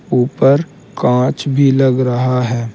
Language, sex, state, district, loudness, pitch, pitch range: Hindi, male, Uttar Pradesh, Saharanpur, -14 LUFS, 130 Hz, 125-140 Hz